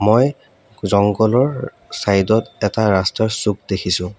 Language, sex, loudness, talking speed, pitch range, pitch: Assamese, male, -17 LUFS, 115 wpm, 100-110 Hz, 105 Hz